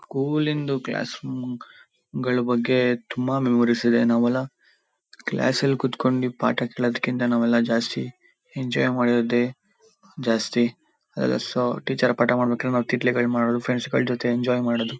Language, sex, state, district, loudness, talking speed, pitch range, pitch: Kannada, male, Karnataka, Shimoga, -23 LUFS, 120 wpm, 120-130 Hz, 125 Hz